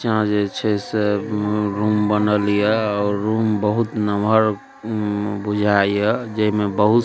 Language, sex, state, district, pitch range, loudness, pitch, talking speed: Maithili, male, Bihar, Supaul, 105-110 Hz, -19 LUFS, 105 Hz, 160 wpm